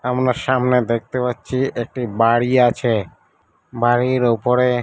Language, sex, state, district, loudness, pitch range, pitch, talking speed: Bengali, male, West Bengal, Malda, -18 LUFS, 120-125 Hz, 125 Hz, 110 wpm